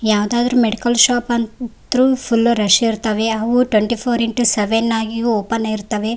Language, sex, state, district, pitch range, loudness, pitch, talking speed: Kannada, female, Karnataka, Raichur, 220-240 Hz, -16 LUFS, 230 Hz, 145 wpm